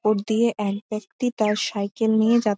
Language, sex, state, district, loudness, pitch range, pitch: Bengali, female, West Bengal, Malda, -23 LUFS, 210-225 Hz, 215 Hz